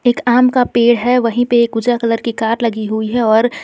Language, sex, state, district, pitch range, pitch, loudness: Hindi, female, Jharkhand, Garhwa, 230-245 Hz, 235 Hz, -14 LUFS